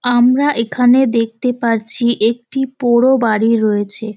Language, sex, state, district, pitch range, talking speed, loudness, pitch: Bengali, female, West Bengal, Dakshin Dinajpur, 225-250 Hz, 115 wpm, -14 LUFS, 235 Hz